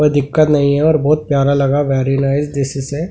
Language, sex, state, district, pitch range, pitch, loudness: Hindi, male, Delhi, New Delhi, 140-150 Hz, 145 Hz, -14 LUFS